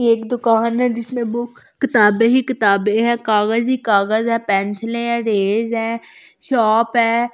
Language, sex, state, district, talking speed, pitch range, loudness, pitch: Hindi, female, Delhi, New Delhi, 155 wpm, 220-235 Hz, -17 LUFS, 230 Hz